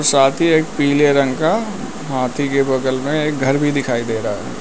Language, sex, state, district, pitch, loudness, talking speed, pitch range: Hindi, male, Uttar Pradesh, Lalitpur, 140 Hz, -17 LUFS, 210 wpm, 135-155 Hz